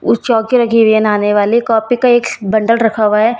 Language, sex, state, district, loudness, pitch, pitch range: Hindi, female, Bihar, Katihar, -12 LUFS, 225 Hz, 215-235 Hz